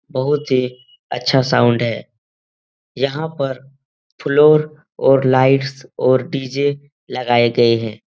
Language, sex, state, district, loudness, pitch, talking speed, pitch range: Hindi, male, Uttar Pradesh, Etah, -16 LUFS, 130 Hz, 110 wpm, 120-140 Hz